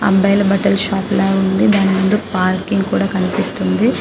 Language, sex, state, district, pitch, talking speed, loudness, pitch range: Telugu, female, Telangana, Karimnagar, 195 Hz, 150 wpm, -15 LUFS, 190-200 Hz